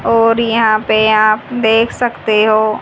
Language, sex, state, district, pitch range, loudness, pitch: Hindi, female, Haryana, Jhajjar, 215-230 Hz, -12 LUFS, 220 Hz